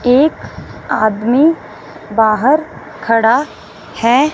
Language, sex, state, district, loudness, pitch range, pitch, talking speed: Hindi, female, Punjab, Fazilka, -13 LUFS, 225-290 Hz, 245 Hz, 70 wpm